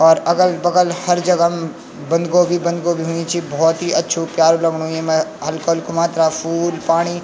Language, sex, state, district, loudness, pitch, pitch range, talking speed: Garhwali, male, Uttarakhand, Tehri Garhwal, -17 LUFS, 165 Hz, 160-175 Hz, 185 wpm